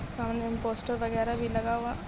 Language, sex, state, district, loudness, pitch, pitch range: Hindi, female, Bihar, Darbhanga, -31 LUFS, 230 Hz, 225-235 Hz